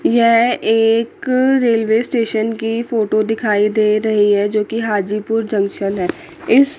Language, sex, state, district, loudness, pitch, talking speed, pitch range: Hindi, female, Chandigarh, Chandigarh, -16 LUFS, 225 Hz, 140 wpm, 210-235 Hz